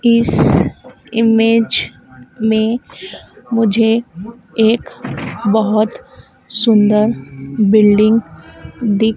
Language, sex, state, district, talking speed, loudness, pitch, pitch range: Hindi, female, Madhya Pradesh, Dhar, 60 wpm, -14 LUFS, 220 Hz, 210-230 Hz